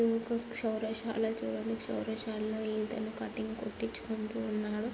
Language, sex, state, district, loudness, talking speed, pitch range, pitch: Telugu, female, Andhra Pradesh, Guntur, -36 LUFS, 85 wpm, 215-225 Hz, 220 Hz